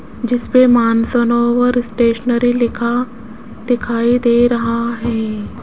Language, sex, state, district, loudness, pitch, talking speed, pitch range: Hindi, female, Rajasthan, Jaipur, -15 LUFS, 235 Hz, 95 wpm, 230-245 Hz